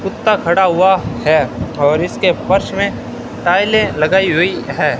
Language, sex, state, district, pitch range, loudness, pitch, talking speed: Hindi, male, Rajasthan, Bikaner, 150-195 Hz, -14 LUFS, 185 Hz, 145 wpm